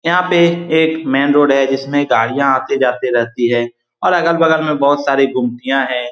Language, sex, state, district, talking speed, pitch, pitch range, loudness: Hindi, male, Bihar, Saran, 185 wpm, 135 Hz, 125-160 Hz, -14 LUFS